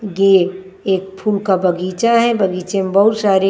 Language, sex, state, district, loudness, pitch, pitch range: Hindi, female, Maharashtra, Washim, -15 LUFS, 195 Hz, 190-205 Hz